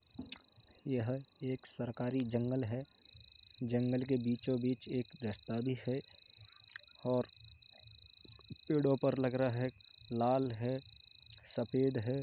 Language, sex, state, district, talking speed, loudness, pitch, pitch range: Hindi, male, Uttar Pradesh, Hamirpur, 115 wpm, -37 LUFS, 125 Hz, 110-130 Hz